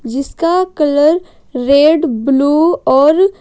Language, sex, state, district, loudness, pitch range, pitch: Hindi, female, Jharkhand, Ranchi, -12 LUFS, 275-335 Hz, 295 Hz